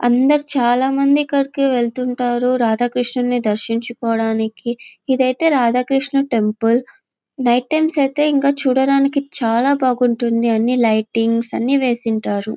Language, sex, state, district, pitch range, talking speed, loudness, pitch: Telugu, female, Andhra Pradesh, Anantapur, 230-275 Hz, 125 wpm, -17 LUFS, 245 Hz